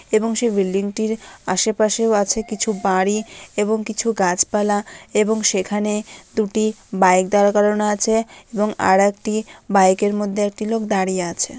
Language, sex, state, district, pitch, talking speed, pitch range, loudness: Bengali, female, West Bengal, Dakshin Dinajpur, 210 Hz, 145 wpm, 200-220 Hz, -19 LUFS